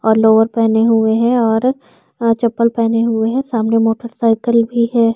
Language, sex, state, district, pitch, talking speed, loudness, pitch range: Hindi, female, Chhattisgarh, Korba, 230 Hz, 210 wpm, -14 LUFS, 225-235 Hz